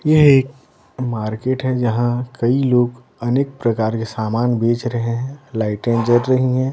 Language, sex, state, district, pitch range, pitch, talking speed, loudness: Hindi, male, Bihar, Patna, 115-130 Hz, 120 Hz, 160 wpm, -18 LUFS